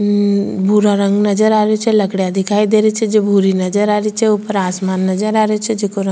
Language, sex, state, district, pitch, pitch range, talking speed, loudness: Rajasthani, female, Rajasthan, Churu, 205 Hz, 195-215 Hz, 265 wpm, -14 LUFS